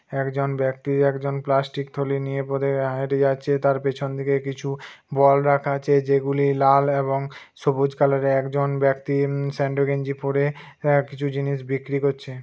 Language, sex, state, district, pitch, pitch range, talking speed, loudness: Bengali, male, West Bengal, Purulia, 140 Hz, 135-140 Hz, 150 wpm, -22 LUFS